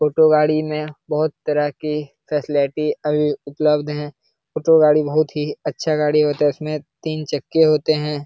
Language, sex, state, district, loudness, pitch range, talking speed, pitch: Hindi, male, Uttar Pradesh, Jalaun, -19 LUFS, 150-155 Hz, 165 wpm, 150 Hz